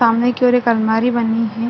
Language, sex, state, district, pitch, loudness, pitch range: Hindi, female, Uttar Pradesh, Budaun, 235 Hz, -16 LUFS, 225-245 Hz